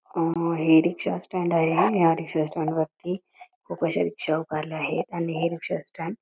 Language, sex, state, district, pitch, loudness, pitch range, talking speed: Marathi, female, Karnataka, Belgaum, 165 Hz, -25 LUFS, 160-180 Hz, 155 wpm